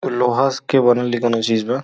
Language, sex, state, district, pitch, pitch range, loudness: Bhojpuri, male, Uttar Pradesh, Gorakhpur, 120 Hz, 120-130 Hz, -17 LUFS